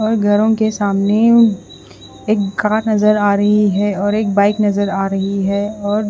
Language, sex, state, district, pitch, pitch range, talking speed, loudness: Hindi, female, Odisha, Khordha, 205 Hz, 200-215 Hz, 175 wpm, -15 LUFS